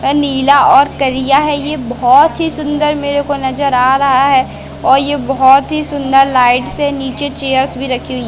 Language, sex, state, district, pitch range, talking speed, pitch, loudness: Hindi, female, Madhya Pradesh, Katni, 265-290 Hz, 195 wpm, 275 Hz, -12 LUFS